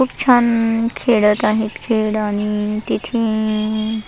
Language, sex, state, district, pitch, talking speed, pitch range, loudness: Marathi, female, Maharashtra, Nagpur, 215 Hz, 105 wpm, 215-230 Hz, -17 LUFS